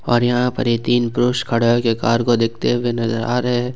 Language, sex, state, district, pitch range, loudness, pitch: Hindi, male, Jharkhand, Ranchi, 115-120 Hz, -18 LUFS, 120 Hz